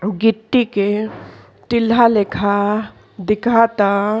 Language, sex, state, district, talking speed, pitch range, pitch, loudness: Bhojpuri, female, Uttar Pradesh, Ghazipur, 70 wpm, 205-230 Hz, 210 Hz, -16 LUFS